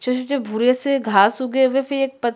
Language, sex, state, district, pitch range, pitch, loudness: Hindi, female, Chhattisgarh, Sukma, 235-270 Hz, 255 Hz, -19 LUFS